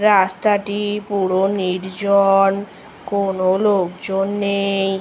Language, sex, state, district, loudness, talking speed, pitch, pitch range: Bengali, female, West Bengal, Malda, -18 LUFS, 85 wpm, 195 Hz, 190-200 Hz